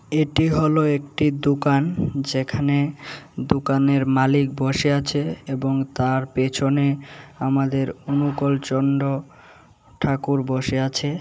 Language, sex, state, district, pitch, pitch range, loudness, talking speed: Bengali, male, Tripura, West Tripura, 140 Hz, 135-145 Hz, -21 LUFS, 95 wpm